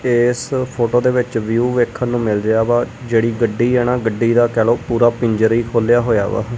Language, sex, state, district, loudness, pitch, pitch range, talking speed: Punjabi, male, Punjab, Kapurthala, -16 LUFS, 120 Hz, 115-120 Hz, 220 wpm